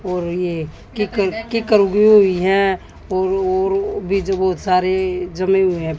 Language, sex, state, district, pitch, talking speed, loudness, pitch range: Hindi, female, Haryana, Jhajjar, 190 Hz, 150 wpm, -17 LUFS, 180-200 Hz